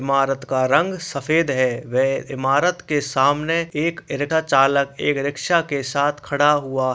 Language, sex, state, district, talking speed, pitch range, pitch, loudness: Hindi, male, Bihar, Purnia, 155 wpm, 135-155 Hz, 140 Hz, -20 LUFS